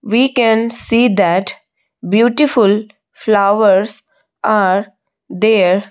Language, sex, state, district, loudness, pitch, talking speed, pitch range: English, female, Odisha, Malkangiri, -13 LUFS, 210 Hz, 80 wpm, 200-230 Hz